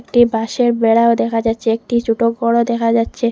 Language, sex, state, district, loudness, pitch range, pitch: Bengali, female, Assam, Hailakandi, -15 LUFS, 225-235 Hz, 230 Hz